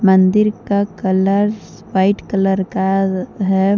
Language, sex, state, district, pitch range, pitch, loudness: Hindi, female, Jharkhand, Deoghar, 190-200 Hz, 195 Hz, -16 LUFS